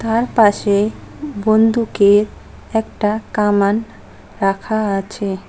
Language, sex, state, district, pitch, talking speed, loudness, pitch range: Bengali, female, West Bengal, Cooch Behar, 215 Hz, 75 wpm, -16 LUFS, 200-225 Hz